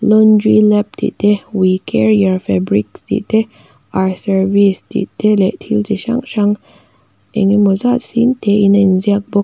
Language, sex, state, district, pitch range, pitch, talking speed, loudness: Mizo, female, Mizoram, Aizawl, 190-215 Hz, 205 Hz, 170 wpm, -14 LUFS